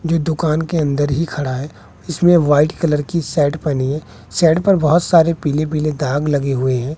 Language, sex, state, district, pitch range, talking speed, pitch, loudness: Hindi, male, Bihar, West Champaran, 145-165 Hz, 205 wpm, 150 Hz, -16 LUFS